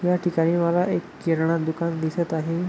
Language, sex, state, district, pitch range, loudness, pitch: Marathi, male, Maharashtra, Pune, 165-175 Hz, -24 LUFS, 170 Hz